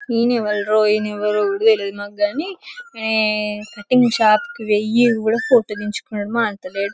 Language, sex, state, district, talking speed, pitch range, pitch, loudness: Telugu, female, Telangana, Karimnagar, 140 wpm, 210-235 Hz, 215 Hz, -18 LUFS